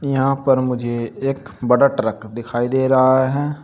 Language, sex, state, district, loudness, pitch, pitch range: Hindi, male, Uttar Pradesh, Saharanpur, -18 LUFS, 130 Hz, 120-135 Hz